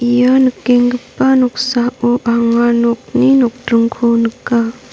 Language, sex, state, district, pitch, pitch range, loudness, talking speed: Garo, female, Meghalaya, North Garo Hills, 240 Hz, 235-250 Hz, -13 LUFS, 85 wpm